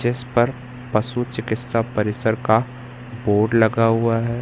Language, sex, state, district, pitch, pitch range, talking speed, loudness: Hindi, female, Madhya Pradesh, Katni, 115 Hz, 110-125 Hz, 135 wpm, -20 LUFS